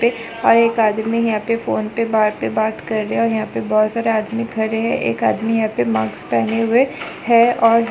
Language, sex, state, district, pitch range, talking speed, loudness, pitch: Hindi, female, Chhattisgarh, Sukma, 210-230 Hz, 235 wpm, -18 LUFS, 220 Hz